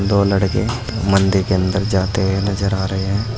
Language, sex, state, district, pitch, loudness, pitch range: Hindi, male, Uttar Pradesh, Saharanpur, 100 Hz, -18 LUFS, 95-100 Hz